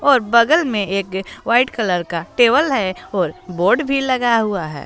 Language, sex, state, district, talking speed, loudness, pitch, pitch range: Hindi, female, Jharkhand, Garhwa, 185 wpm, -17 LUFS, 215 Hz, 185-255 Hz